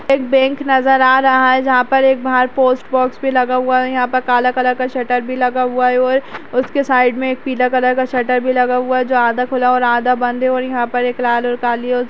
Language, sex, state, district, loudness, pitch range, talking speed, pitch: Kumaoni, female, Uttarakhand, Uttarkashi, -15 LUFS, 250-260 Hz, 280 wpm, 255 Hz